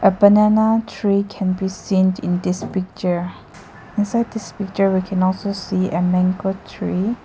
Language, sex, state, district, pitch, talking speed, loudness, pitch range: English, female, Nagaland, Kohima, 190 Hz, 155 wpm, -19 LUFS, 185-205 Hz